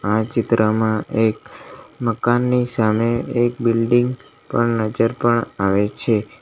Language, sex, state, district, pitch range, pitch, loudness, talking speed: Gujarati, male, Gujarat, Valsad, 110-120 Hz, 115 Hz, -19 LUFS, 110 wpm